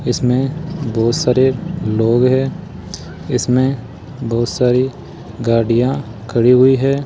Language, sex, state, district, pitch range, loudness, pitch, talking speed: Hindi, male, Rajasthan, Jaipur, 120-135 Hz, -16 LUFS, 125 Hz, 100 wpm